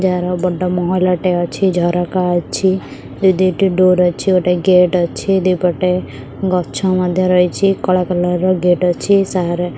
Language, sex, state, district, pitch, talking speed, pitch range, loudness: Odia, female, Odisha, Khordha, 180 Hz, 160 wpm, 180-185 Hz, -15 LUFS